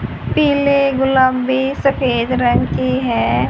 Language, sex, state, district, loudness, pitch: Hindi, female, Haryana, Charkhi Dadri, -15 LUFS, 260 Hz